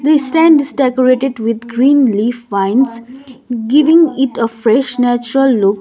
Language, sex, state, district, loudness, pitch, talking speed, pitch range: English, female, Sikkim, Gangtok, -12 LUFS, 255 Hz, 145 wpm, 230-270 Hz